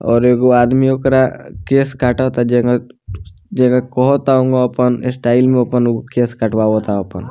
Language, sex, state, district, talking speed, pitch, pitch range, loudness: Bhojpuri, male, Bihar, Muzaffarpur, 150 wpm, 125 Hz, 120-130 Hz, -14 LUFS